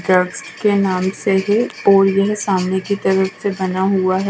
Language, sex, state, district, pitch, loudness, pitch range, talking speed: Hindi, female, Punjab, Kapurthala, 190 Hz, -17 LUFS, 190-200 Hz, 165 wpm